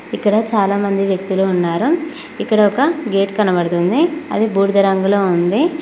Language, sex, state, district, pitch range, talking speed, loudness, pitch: Telugu, female, Telangana, Mahabubabad, 190-275 Hz, 135 wpm, -16 LUFS, 200 Hz